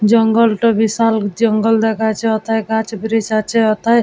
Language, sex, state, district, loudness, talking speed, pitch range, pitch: Bengali, female, West Bengal, Jalpaiguri, -15 LUFS, 165 wpm, 220-230 Hz, 225 Hz